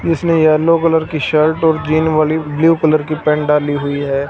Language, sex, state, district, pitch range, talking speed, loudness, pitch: Hindi, male, Punjab, Fazilka, 150-160 Hz, 210 wpm, -14 LUFS, 155 Hz